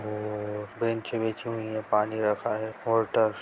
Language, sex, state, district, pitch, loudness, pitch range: Hindi, male, Bihar, Jahanabad, 110 Hz, -29 LUFS, 105-115 Hz